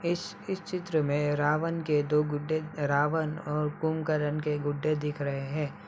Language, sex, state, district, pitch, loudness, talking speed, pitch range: Hindi, male, Uttar Pradesh, Budaun, 150 Hz, -30 LUFS, 175 wpm, 145-160 Hz